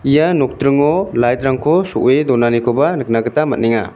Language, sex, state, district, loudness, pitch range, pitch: Garo, male, Meghalaya, West Garo Hills, -15 LUFS, 120-150 Hz, 130 Hz